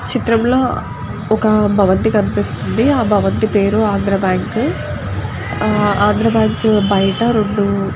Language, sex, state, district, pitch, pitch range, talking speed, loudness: Telugu, female, Andhra Pradesh, Guntur, 205 Hz, 195-220 Hz, 130 wpm, -15 LUFS